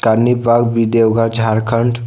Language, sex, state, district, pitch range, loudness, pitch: Hindi, male, Jharkhand, Deoghar, 115-120 Hz, -14 LUFS, 115 Hz